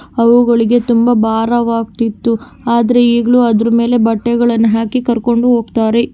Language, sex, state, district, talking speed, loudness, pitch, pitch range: Kannada, female, Karnataka, Gulbarga, 110 wpm, -12 LUFS, 235 Hz, 230-240 Hz